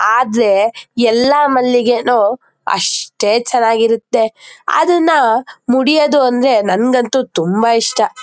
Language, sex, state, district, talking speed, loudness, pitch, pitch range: Kannada, female, Karnataka, Mysore, 80 wpm, -13 LUFS, 245 Hz, 225-265 Hz